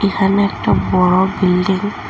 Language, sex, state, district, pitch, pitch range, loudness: Bengali, female, Assam, Hailakandi, 190 Hz, 185-200 Hz, -15 LUFS